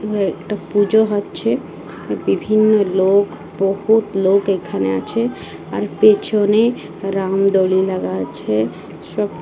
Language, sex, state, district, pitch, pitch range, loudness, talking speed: Bengali, female, Odisha, Malkangiri, 195 Hz, 190-210 Hz, -17 LUFS, 100 wpm